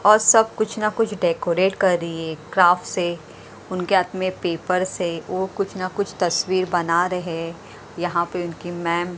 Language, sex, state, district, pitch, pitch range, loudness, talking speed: Hindi, female, Maharashtra, Mumbai Suburban, 180 Hz, 170-190 Hz, -21 LUFS, 185 wpm